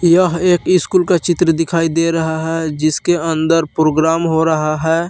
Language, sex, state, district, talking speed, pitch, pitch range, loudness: Hindi, male, Jharkhand, Palamu, 175 wpm, 165 Hz, 160-175 Hz, -15 LUFS